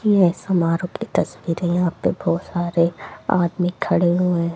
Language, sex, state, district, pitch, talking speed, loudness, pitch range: Hindi, female, Haryana, Rohtak, 175 Hz, 160 wpm, -21 LUFS, 170-180 Hz